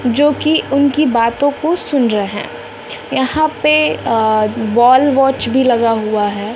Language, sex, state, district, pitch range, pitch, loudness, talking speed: Hindi, female, Bihar, West Champaran, 215-285 Hz, 245 Hz, -14 LUFS, 135 wpm